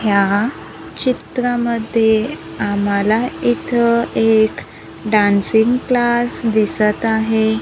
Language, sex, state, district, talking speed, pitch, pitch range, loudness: Marathi, female, Maharashtra, Gondia, 70 wpm, 220 Hz, 205-240 Hz, -16 LUFS